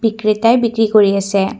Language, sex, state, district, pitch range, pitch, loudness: Assamese, female, Assam, Kamrup Metropolitan, 200-225 Hz, 215 Hz, -14 LUFS